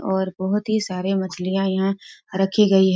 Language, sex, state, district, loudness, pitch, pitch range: Hindi, female, Bihar, East Champaran, -22 LUFS, 190 Hz, 190-195 Hz